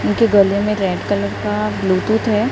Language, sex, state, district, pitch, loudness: Hindi, female, Maharashtra, Gondia, 195 Hz, -17 LUFS